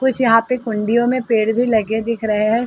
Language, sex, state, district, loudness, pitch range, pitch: Hindi, female, Uttar Pradesh, Jalaun, -17 LUFS, 220-245 Hz, 230 Hz